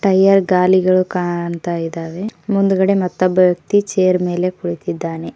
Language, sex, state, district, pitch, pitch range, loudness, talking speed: Kannada, female, Karnataka, Koppal, 185 Hz, 175-190 Hz, -16 LUFS, 110 wpm